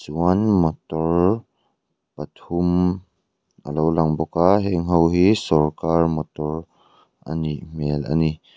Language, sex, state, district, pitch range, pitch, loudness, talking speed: Mizo, male, Mizoram, Aizawl, 80-90 Hz, 85 Hz, -21 LUFS, 125 wpm